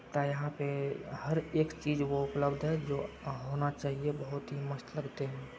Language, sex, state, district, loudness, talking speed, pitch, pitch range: Hindi, male, Bihar, Araria, -35 LUFS, 170 wpm, 140 Hz, 140-150 Hz